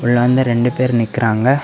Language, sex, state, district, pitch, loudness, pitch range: Tamil, male, Tamil Nadu, Kanyakumari, 120 Hz, -15 LUFS, 120-130 Hz